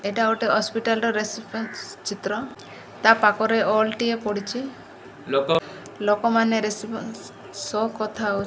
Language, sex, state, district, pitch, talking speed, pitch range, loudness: Odia, female, Odisha, Malkangiri, 220 Hz, 135 wpm, 205-225 Hz, -23 LUFS